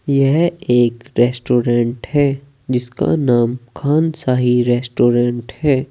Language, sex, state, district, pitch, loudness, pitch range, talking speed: Hindi, male, Uttar Pradesh, Saharanpur, 125 Hz, -16 LUFS, 120-140 Hz, 100 wpm